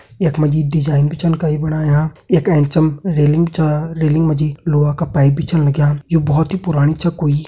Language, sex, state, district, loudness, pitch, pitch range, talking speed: Hindi, male, Uttarakhand, Tehri Garhwal, -15 LUFS, 155 Hz, 150-165 Hz, 210 wpm